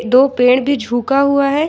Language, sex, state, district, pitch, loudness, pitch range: Hindi, female, Jharkhand, Ranchi, 270 Hz, -14 LUFS, 250-280 Hz